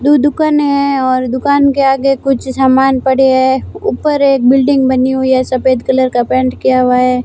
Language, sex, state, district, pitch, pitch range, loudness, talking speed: Hindi, female, Rajasthan, Barmer, 265 Hz, 255-275 Hz, -11 LUFS, 200 wpm